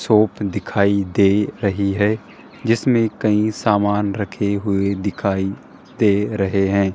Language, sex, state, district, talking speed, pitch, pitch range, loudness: Hindi, male, Rajasthan, Jaipur, 120 wpm, 100 Hz, 100-105 Hz, -19 LUFS